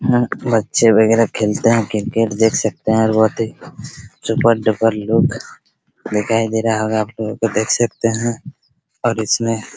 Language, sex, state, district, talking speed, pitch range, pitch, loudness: Hindi, male, Bihar, Araria, 170 wpm, 110-115 Hz, 115 Hz, -17 LUFS